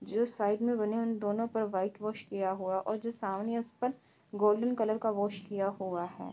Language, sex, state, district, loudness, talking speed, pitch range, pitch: Hindi, female, Bihar, Kishanganj, -33 LUFS, 235 wpm, 195-225 Hz, 210 Hz